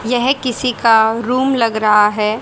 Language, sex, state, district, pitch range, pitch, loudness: Hindi, female, Haryana, Rohtak, 220-250 Hz, 230 Hz, -14 LUFS